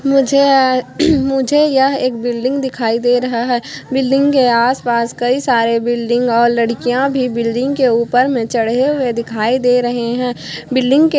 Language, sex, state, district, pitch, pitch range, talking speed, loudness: Hindi, female, Chhattisgarh, Korba, 250 Hz, 235-270 Hz, 160 wpm, -14 LUFS